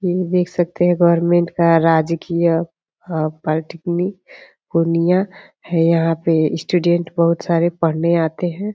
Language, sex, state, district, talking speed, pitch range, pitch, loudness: Hindi, female, Bihar, Purnia, 135 wpm, 165-175 Hz, 170 Hz, -17 LUFS